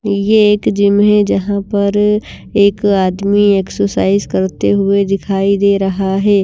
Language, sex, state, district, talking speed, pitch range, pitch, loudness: Hindi, female, Himachal Pradesh, Shimla, 130 wpm, 195-205 Hz, 200 Hz, -13 LUFS